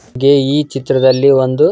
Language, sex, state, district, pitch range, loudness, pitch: Kannada, male, Karnataka, Dakshina Kannada, 130-140 Hz, -12 LUFS, 135 Hz